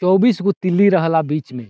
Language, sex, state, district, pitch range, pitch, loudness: Bhojpuri, male, Bihar, Saran, 155-200 Hz, 180 Hz, -16 LUFS